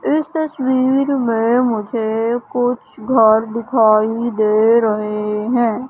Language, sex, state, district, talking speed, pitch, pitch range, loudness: Hindi, female, Madhya Pradesh, Katni, 100 wpm, 230 Hz, 220-255 Hz, -16 LUFS